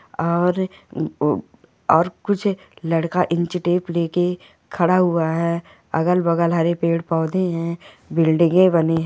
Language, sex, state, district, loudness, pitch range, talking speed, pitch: Hindi, female, Goa, North and South Goa, -20 LUFS, 165-180 Hz, 125 wpm, 170 Hz